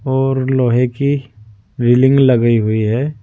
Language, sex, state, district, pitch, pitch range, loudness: Hindi, male, Uttar Pradesh, Saharanpur, 125 Hz, 115-135 Hz, -14 LUFS